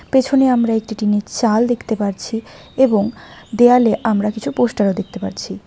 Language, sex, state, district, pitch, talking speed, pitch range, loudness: Bengali, female, West Bengal, Alipurduar, 225 Hz, 170 wpm, 210-245 Hz, -17 LUFS